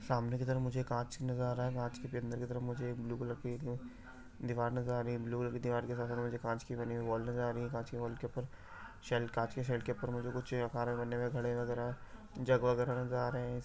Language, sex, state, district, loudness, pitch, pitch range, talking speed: Garhwali, male, Uttarakhand, Tehri Garhwal, -38 LUFS, 120 Hz, 120-125 Hz, 275 wpm